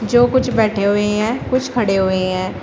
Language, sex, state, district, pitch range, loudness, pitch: Hindi, female, Uttar Pradesh, Shamli, 195-240 Hz, -17 LUFS, 215 Hz